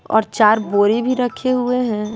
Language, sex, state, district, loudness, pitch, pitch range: Hindi, female, Bihar, West Champaran, -17 LUFS, 220 Hz, 215-250 Hz